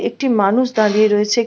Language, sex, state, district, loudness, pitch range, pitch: Bengali, female, West Bengal, Malda, -15 LUFS, 210-240 Hz, 215 Hz